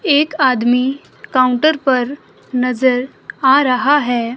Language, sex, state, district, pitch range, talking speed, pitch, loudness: Hindi, male, Himachal Pradesh, Shimla, 250-285 Hz, 110 wpm, 260 Hz, -15 LUFS